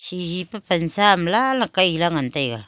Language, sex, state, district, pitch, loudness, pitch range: Wancho, female, Arunachal Pradesh, Longding, 180 Hz, -19 LUFS, 165-200 Hz